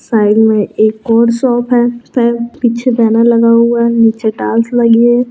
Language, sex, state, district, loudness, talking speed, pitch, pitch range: Kumaoni, female, Uttarakhand, Tehri Garhwal, -11 LUFS, 170 wpm, 235 Hz, 225-240 Hz